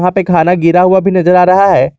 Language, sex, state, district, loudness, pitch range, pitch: Hindi, male, Jharkhand, Garhwa, -9 LUFS, 180-190 Hz, 180 Hz